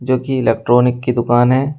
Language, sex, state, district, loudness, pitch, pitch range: Hindi, male, Uttar Pradesh, Shamli, -15 LUFS, 125 Hz, 120-130 Hz